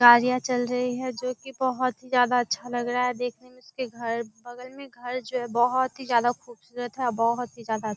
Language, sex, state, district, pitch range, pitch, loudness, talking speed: Hindi, female, Bihar, Kishanganj, 240-255 Hz, 245 Hz, -26 LUFS, 225 wpm